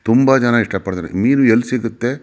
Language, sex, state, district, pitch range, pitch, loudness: Kannada, male, Karnataka, Mysore, 105-125 Hz, 120 Hz, -15 LUFS